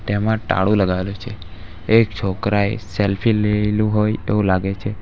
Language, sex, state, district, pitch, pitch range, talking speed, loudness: Gujarati, male, Gujarat, Valsad, 105 Hz, 95-105 Hz, 145 wpm, -19 LUFS